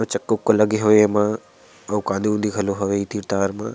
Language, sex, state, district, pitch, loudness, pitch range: Chhattisgarhi, male, Chhattisgarh, Sarguja, 105 Hz, -20 LUFS, 100-105 Hz